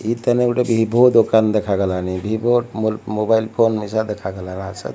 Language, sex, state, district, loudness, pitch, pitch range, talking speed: Odia, male, Odisha, Malkangiri, -18 LUFS, 110 Hz, 105-115 Hz, 160 wpm